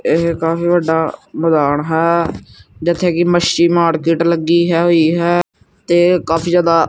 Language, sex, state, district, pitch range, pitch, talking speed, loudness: Punjabi, male, Punjab, Kapurthala, 160-175 Hz, 170 Hz, 130 wpm, -14 LUFS